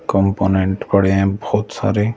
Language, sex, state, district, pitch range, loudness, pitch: Hindi, male, Delhi, New Delhi, 95-105 Hz, -17 LUFS, 100 Hz